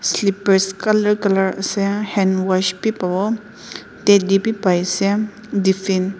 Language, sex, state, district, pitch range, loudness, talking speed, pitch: Nagamese, female, Nagaland, Dimapur, 190-210 Hz, -18 LUFS, 125 wpm, 195 Hz